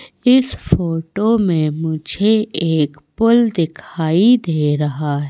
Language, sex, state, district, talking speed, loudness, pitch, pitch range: Hindi, female, Madhya Pradesh, Katni, 100 wpm, -16 LUFS, 165 Hz, 155-215 Hz